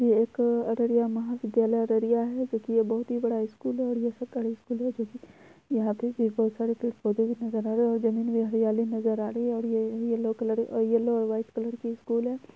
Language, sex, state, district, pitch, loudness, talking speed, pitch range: Hindi, female, Bihar, Araria, 230 Hz, -28 LUFS, 160 wpm, 225-235 Hz